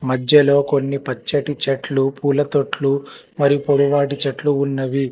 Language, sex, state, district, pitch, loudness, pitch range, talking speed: Telugu, male, Telangana, Hyderabad, 140 Hz, -18 LUFS, 135-145 Hz, 105 wpm